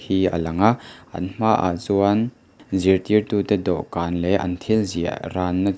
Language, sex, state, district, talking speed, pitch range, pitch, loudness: Mizo, male, Mizoram, Aizawl, 175 wpm, 90-105 Hz, 95 Hz, -21 LUFS